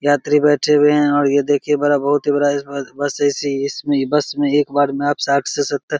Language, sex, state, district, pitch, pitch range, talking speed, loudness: Maithili, male, Bihar, Begusarai, 145 Hz, 140-145 Hz, 260 wpm, -17 LUFS